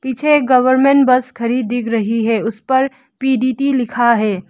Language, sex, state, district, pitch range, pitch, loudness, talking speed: Hindi, female, Arunachal Pradesh, Lower Dibang Valley, 230-265 Hz, 255 Hz, -15 LUFS, 200 wpm